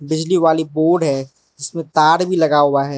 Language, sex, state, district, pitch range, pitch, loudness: Hindi, male, Arunachal Pradesh, Lower Dibang Valley, 145-165 Hz, 155 Hz, -16 LUFS